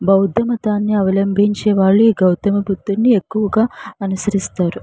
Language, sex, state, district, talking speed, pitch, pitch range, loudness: Telugu, female, Andhra Pradesh, Srikakulam, 110 wpm, 200 Hz, 195-215 Hz, -16 LUFS